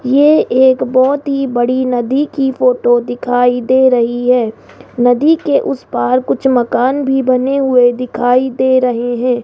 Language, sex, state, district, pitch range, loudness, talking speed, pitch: Hindi, female, Rajasthan, Jaipur, 245-265 Hz, -13 LUFS, 160 wpm, 255 Hz